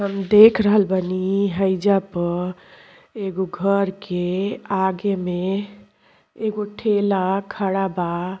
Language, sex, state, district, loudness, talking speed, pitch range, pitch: Bhojpuri, female, Uttar Pradesh, Gorakhpur, -20 LUFS, 105 wpm, 185-200 Hz, 195 Hz